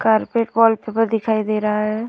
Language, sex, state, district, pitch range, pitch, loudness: Hindi, female, Uttar Pradesh, Hamirpur, 215-225 Hz, 220 Hz, -18 LUFS